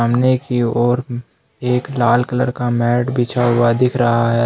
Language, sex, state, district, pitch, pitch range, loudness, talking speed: Hindi, male, Jharkhand, Ranchi, 120 Hz, 120-125 Hz, -16 LUFS, 175 wpm